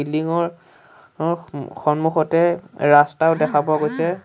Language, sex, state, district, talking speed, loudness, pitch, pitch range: Assamese, male, Assam, Sonitpur, 115 wpm, -19 LUFS, 160 Hz, 150-170 Hz